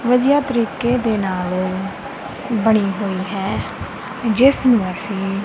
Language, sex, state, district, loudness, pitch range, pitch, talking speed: Punjabi, female, Punjab, Kapurthala, -19 LUFS, 195-245 Hz, 215 Hz, 100 wpm